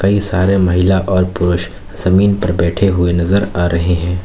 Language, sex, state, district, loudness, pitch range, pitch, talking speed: Hindi, male, Uttar Pradesh, Lalitpur, -14 LUFS, 90-95 Hz, 90 Hz, 185 wpm